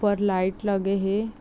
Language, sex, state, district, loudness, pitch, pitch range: Chhattisgarhi, female, Chhattisgarh, Raigarh, -25 LUFS, 200 Hz, 195-205 Hz